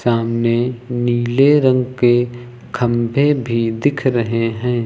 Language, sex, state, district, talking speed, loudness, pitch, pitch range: Hindi, male, Uttar Pradesh, Lucknow, 110 wpm, -16 LUFS, 120 Hz, 115-130 Hz